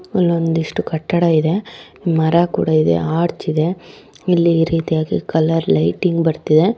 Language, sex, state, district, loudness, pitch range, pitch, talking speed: Kannada, female, Karnataka, Dharwad, -17 LUFS, 160-175 Hz, 165 Hz, 140 wpm